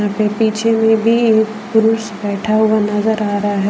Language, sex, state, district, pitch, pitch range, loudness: Hindi, female, Jharkhand, Deoghar, 215 Hz, 210-225 Hz, -15 LUFS